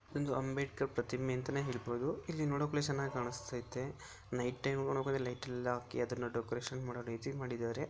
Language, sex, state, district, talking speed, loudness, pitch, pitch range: Kannada, male, Karnataka, Dharwad, 160 wpm, -39 LUFS, 125 Hz, 120-135 Hz